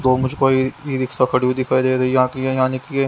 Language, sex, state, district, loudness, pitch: Hindi, male, Haryana, Jhajjar, -18 LUFS, 130 Hz